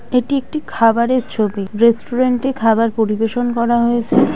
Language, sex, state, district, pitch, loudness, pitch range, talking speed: Bengali, female, West Bengal, Kolkata, 235 Hz, -16 LUFS, 225-250 Hz, 135 wpm